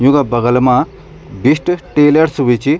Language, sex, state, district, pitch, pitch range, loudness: Garhwali, male, Uttarakhand, Tehri Garhwal, 145 Hz, 125-150 Hz, -12 LUFS